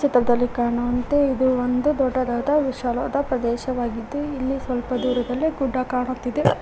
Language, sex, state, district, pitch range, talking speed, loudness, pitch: Kannada, female, Karnataka, Koppal, 245-270 Hz, 100 wpm, -22 LUFS, 255 Hz